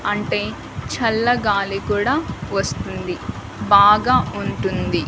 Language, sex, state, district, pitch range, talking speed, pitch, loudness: Telugu, female, Andhra Pradesh, Annamaya, 205-240 Hz, 70 wpm, 210 Hz, -19 LUFS